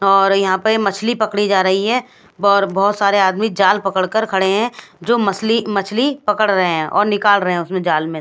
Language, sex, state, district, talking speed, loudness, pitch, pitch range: Hindi, female, Odisha, Khordha, 220 wpm, -16 LUFS, 200 Hz, 190-215 Hz